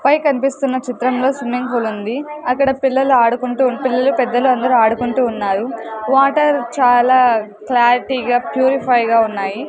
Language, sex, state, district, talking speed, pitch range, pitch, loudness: Telugu, female, Andhra Pradesh, Sri Satya Sai, 130 wpm, 240-265 Hz, 250 Hz, -15 LUFS